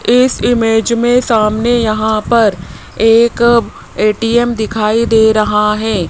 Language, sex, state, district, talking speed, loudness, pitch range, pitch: Hindi, male, Rajasthan, Jaipur, 120 wpm, -12 LUFS, 215-235 Hz, 225 Hz